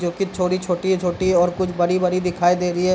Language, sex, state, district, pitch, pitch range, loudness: Hindi, male, Bihar, Darbhanga, 180 Hz, 175-185 Hz, -20 LUFS